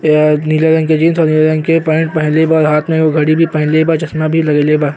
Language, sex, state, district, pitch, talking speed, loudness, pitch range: Bhojpuri, male, Uttar Pradesh, Gorakhpur, 155 Hz, 275 wpm, -12 LUFS, 155-160 Hz